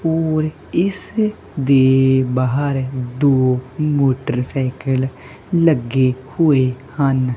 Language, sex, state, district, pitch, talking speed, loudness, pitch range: Punjabi, male, Punjab, Kapurthala, 135 Hz, 75 wpm, -17 LUFS, 130-150 Hz